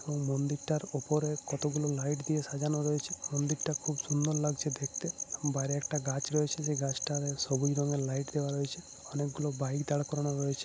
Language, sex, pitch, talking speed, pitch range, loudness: Odia, male, 145 Hz, 170 wpm, 140-150 Hz, -33 LUFS